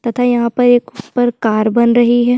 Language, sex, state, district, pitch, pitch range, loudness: Hindi, female, Chhattisgarh, Sukma, 240 Hz, 235-245 Hz, -13 LUFS